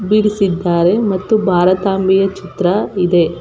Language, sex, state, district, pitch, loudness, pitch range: Kannada, female, Karnataka, Belgaum, 190 Hz, -14 LUFS, 180-200 Hz